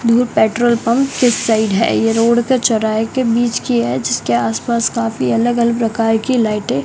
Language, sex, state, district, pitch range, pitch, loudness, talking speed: Hindi, male, Rajasthan, Bikaner, 225-240 Hz, 235 Hz, -15 LUFS, 200 wpm